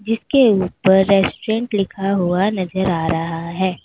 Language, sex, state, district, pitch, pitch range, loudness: Hindi, female, Uttar Pradesh, Lalitpur, 190 Hz, 180-205 Hz, -17 LUFS